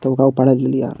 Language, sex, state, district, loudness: Maithili, male, Bihar, Madhepura, -16 LUFS